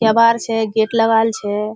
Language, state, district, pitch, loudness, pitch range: Surjapuri, Bihar, Kishanganj, 225 Hz, -16 LUFS, 220-225 Hz